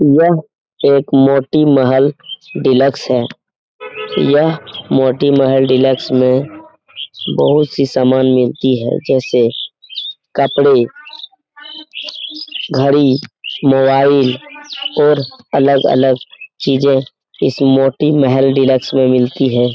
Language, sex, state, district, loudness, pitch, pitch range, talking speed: Hindi, male, Bihar, Jahanabad, -13 LUFS, 135 Hz, 130-155 Hz, 95 wpm